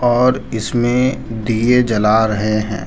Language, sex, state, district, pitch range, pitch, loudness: Hindi, male, Jharkhand, Deoghar, 110-125 Hz, 115 Hz, -16 LUFS